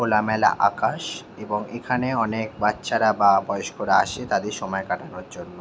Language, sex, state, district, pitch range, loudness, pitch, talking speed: Bengali, male, West Bengal, Jhargram, 105-110 Hz, -23 LUFS, 110 Hz, 150 wpm